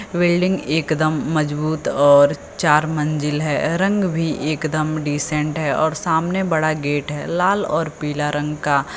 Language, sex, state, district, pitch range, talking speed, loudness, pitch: Hindi, female, Uttar Pradesh, Lucknow, 150-160 Hz, 145 wpm, -19 LUFS, 155 Hz